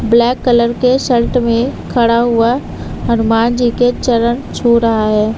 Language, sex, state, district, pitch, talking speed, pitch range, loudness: Hindi, female, Uttar Pradesh, Lucknow, 235 Hz, 155 wpm, 230-245 Hz, -13 LUFS